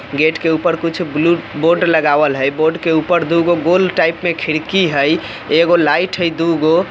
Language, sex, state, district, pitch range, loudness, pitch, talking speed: Bajjika, male, Bihar, Vaishali, 155-170 Hz, -15 LUFS, 165 Hz, 180 wpm